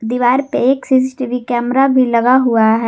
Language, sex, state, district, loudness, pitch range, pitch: Hindi, female, Jharkhand, Garhwa, -14 LUFS, 240-260 Hz, 250 Hz